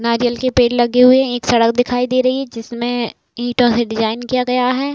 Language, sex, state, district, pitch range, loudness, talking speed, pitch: Hindi, female, Uttar Pradesh, Budaun, 235-255 Hz, -16 LUFS, 230 wpm, 245 Hz